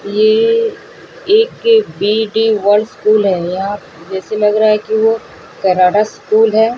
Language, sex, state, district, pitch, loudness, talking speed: Hindi, female, Odisha, Sambalpur, 220 Hz, -13 LUFS, 135 wpm